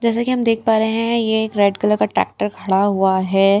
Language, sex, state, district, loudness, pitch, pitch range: Hindi, female, Bihar, Katihar, -17 LUFS, 210 Hz, 200-225 Hz